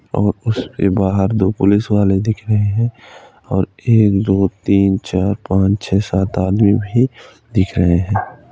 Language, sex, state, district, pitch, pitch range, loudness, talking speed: Hindi, male, Uttar Pradesh, Ghazipur, 100 Hz, 95-110 Hz, -16 LUFS, 155 wpm